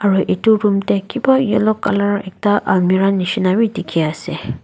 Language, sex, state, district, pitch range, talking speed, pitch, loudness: Nagamese, female, Nagaland, Dimapur, 190-215 Hz, 170 wpm, 200 Hz, -16 LUFS